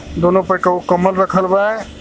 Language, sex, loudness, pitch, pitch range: Bhojpuri, male, -15 LUFS, 190 Hz, 180-190 Hz